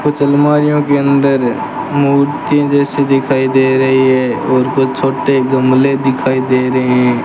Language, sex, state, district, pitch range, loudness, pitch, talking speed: Hindi, male, Rajasthan, Bikaner, 130-140 Hz, -12 LUFS, 135 Hz, 150 wpm